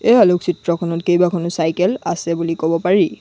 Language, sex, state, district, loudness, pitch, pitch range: Assamese, female, Assam, Sonitpur, -17 LUFS, 175 Hz, 165-180 Hz